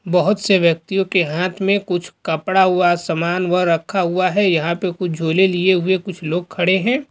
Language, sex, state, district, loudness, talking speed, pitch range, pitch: Bhojpuri, male, Bihar, Saran, -17 LUFS, 210 wpm, 175-190 Hz, 180 Hz